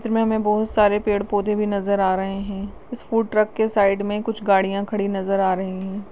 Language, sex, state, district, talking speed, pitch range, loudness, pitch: Hindi, female, Rajasthan, Nagaur, 255 wpm, 195-215 Hz, -21 LUFS, 205 Hz